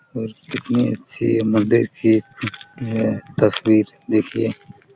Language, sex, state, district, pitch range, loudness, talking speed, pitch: Hindi, male, Chhattisgarh, Korba, 110-125 Hz, -20 LUFS, 110 wpm, 115 Hz